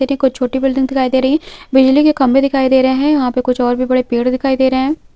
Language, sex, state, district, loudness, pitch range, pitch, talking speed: Hindi, female, Uttarakhand, Tehri Garhwal, -14 LUFS, 255-275 Hz, 265 Hz, 305 wpm